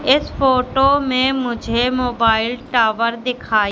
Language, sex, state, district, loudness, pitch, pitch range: Hindi, female, Madhya Pradesh, Katni, -17 LUFS, 250 Hz, 230-260 Hz